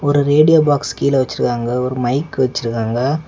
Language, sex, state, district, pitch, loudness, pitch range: Tamil, male, Tamil Nadu, Kanyakumari, 135 Hz, -16 LUFS, 120-145 Hz